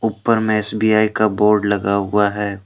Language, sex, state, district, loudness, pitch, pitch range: Hindi, male, Jharkhand, Deoghar, -16 LUFS, 105 Hz, 100-110 Hz